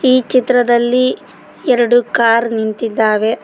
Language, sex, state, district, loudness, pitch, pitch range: Kannada, female, Karnataka, Koppal, -13 LUFS, 240 Hz, 230-250 Hz